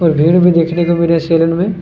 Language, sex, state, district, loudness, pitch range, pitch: Hindi, male, Chhattisgarh, Kabirdham, -12 LUFS, 165-175 Hz, 170 Hz